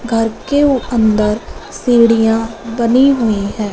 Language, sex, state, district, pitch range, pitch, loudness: Hindi, female, Punjab, Fazilka, 220-245 Hz, 230 Hz, -14 LUFS